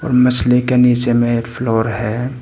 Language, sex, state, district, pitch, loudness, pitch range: Hindi, male, Arunachal Pradesh, Papum Pare, 120 Hz, -14 LUFS, 115-125 Hz